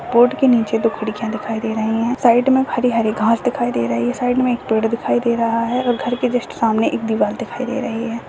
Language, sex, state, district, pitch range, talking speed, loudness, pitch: Hindi, female, Goa, North and South Goa, 225-245 Hz, 255 wpm, -18 LUFS, 235 Hz